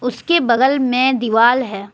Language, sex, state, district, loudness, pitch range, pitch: Hindi, female, Jharkhand, Deoghar, -15 LUFS, 235-260 Hz, 250 Hz